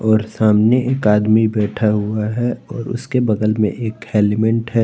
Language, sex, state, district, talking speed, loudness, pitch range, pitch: Hindi, male, Jharkhand, Palamu, 175 wpm, -17 LUFS, 105-120 Hz, 110 Hz